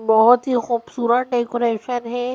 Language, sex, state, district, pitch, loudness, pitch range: Hindi, female, Madhya Pradesh, Bhopal, 240 Hz, -19 LUFS, 235-245 Hz